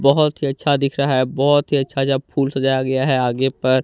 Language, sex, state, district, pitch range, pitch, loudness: Hindi, male, Jharkhand, Deoghar, 130-140 Hz, 135 Hz, -18 LUFS